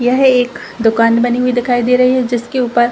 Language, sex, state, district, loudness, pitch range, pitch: Hindi, female, Chhattisgarh, Rajnandgaon, -13 LUFS, 240-250 Hz, 245 Hz